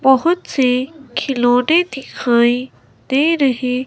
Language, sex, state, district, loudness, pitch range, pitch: Hindi, female, Himachal Pradesh, Shimla, -16 LUFS, 250-285 Hz, 265 Hz